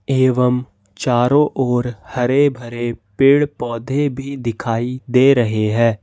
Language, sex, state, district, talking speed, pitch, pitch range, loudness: Hindi, male, Jharkhand, Ranchi, 120 wpm, 125 Hz, 115-135 Hz, -17 LUFS